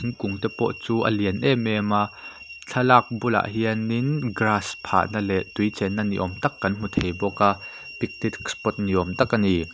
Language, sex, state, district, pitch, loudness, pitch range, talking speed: Mizo, male, Mizoram, Aizawl, 105 Hz, -24 LUFS, 100-115 Hz, 210 wpm